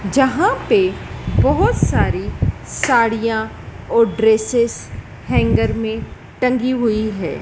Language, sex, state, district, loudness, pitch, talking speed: Hindi, female, Madhya Pradesh, Dhar, -17 LUFS, 220 Hz, 95 wpm